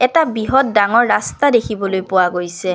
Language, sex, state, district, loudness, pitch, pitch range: Assamese, female, Assam, Kamrup Metropolitan, -15 LUFS, 215 Hz, 185-250 Hz